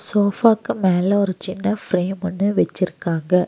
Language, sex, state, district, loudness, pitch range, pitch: Tamil, female, Tamil Nadu, Nilgiris, -19 LUFS, 185-205 Hz, 190 Hz